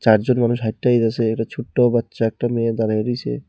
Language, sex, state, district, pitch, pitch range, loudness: Bengali, male, Tripura, Unakoti, 115 Hz, 110-120 Hz, -19 LUFS